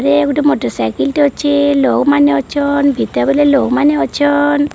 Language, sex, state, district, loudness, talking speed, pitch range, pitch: Odia, female, Odisha, Sambalpur, -13 LUFS, 150 wpm, 275-290 Hz, 285 Hz